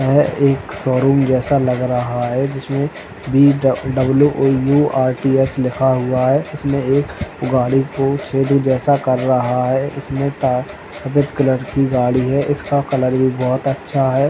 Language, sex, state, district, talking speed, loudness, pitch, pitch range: Hindi, male, Uttar Pradesh, Etah, 175 wpm, -16 LUFS, 135 Hz, 130-140 Hz